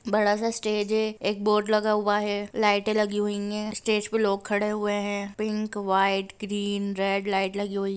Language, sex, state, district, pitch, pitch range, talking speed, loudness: Hindi, female, Jharkhand, Jamtara, 205 Hz, 205-215 Hz, 180 wpm, -26 LUFS